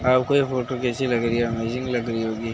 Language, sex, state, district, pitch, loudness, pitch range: Hindi, male, Uttar Pradesh, Hamirpur, 120 Hz, -23 LUFS, 115-130 Hz